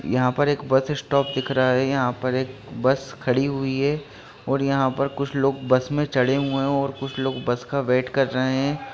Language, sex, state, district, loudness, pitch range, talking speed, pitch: Hindi, male, Bihar, Lakhisarai, -23 LUFS, 130-140 Hz, 230 wpm, 135 Hz